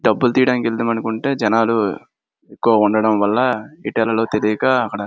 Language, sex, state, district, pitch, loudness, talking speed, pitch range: Telugu, male, Andhra Pradesh, Srikakulam, 115 Hz, -17 LUFS, 155 wpm, 105-125 Hz